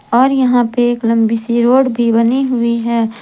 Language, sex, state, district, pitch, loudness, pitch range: Hindi, female, Jharkhand, Garhwa, 235 Hz, -13 LUFS, 230-250 Hz